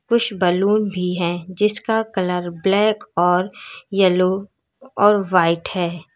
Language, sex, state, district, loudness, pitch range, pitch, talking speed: Hindi, female, Uttar Pradesh, Lalitpur, -19 LUFS, 180-210 Hz, 190 Hz, 115 wpm